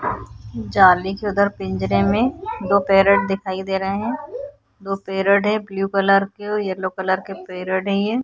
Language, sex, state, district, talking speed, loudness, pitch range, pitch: Hindi, female, Bihar, Vaishali, 180 wpm, -19 LUFS, 190-200 Hz, 195 Hz